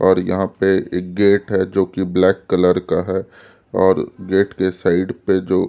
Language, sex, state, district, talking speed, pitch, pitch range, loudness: Hindi, male, Delhi, New Delhi, 190 wpm, 95 Hz, 90-95 Hz, -18 LUFS